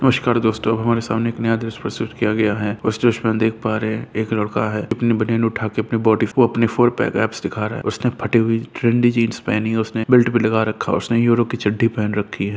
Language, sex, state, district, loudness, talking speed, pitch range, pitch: Hindi, male, Bihar, Jahanabad, -19 LUFS, 265 wpm, 110-115 Hz, 115 Hz